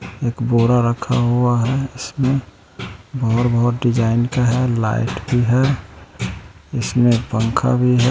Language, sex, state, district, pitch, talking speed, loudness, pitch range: Hindi, male, Bihar, West Champaran, 120 Hz, 135 wpm, -18 LUFS, 115-125 Hz